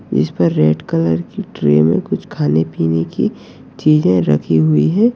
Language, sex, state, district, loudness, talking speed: Hindi, male, Uttarakhand, Uttarkashi, -15 LUFS, 185 wpm